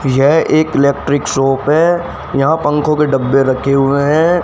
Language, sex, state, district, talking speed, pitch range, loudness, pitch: Hindi, male, Haryana, Rohtak, 160 wpm, 135-155 Hz, -13 LUFS, 140 Hz